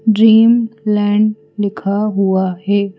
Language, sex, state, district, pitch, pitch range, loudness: Hindi, female, Madhya Pradesh, Bhopal, 205 Hz, 195-215 Hz, -14 LUFS